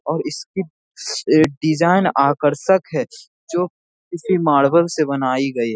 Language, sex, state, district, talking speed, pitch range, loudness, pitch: Hindi, male, Bihar, Jamui, 125 wpm, 140-180 Hz, -18 LUFS, 155 Hz